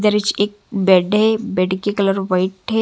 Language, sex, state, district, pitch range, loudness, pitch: Hindi, female, Chhattisgarh, Raipur, 190-210 Hz, -17 LUFS, 200 Hz